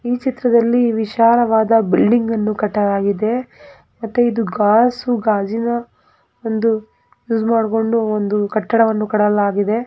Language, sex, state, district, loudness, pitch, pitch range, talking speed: Kannada, female, Karnataka, Gulbarga, -16 LUFS, 225 Hz, 215-235 Hz, 105 wpm